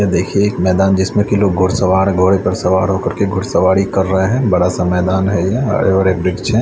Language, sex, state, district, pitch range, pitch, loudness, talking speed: Hindi, male, Chandigarh, Chandigarh, 90-100 Hz, 95 Hz, -14 LUFS, 225 wpm